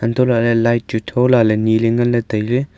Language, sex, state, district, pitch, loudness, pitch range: Wancho, male, Arunachal Pradesh, Longding, 115 Hz, -16 LUFS, 115-120 Hz